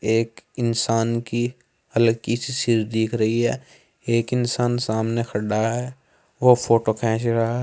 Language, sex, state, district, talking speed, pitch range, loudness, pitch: Hindi, male, Uttar Pradesh, Saharanpur, 150 wpm, 110-120 Hz, -22 LUFS, 115 Hz